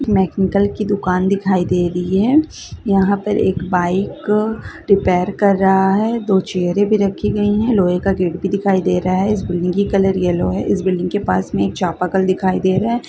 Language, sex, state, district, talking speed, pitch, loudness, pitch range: Hindi, female, Bihar, Saran, 210 wpm, 190 Hz, -17 LUFS, 180-200 Hz